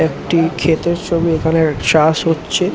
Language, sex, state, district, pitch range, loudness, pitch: Bengali, male, West Bengal, Jhargram, 160-170 Hz, -15 LUFS, 165 Hz